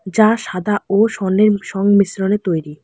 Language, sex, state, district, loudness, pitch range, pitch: Bengali, female, West Bengal, Alipurduar, -16 LUFS, 190-210 Hz, 200 Hz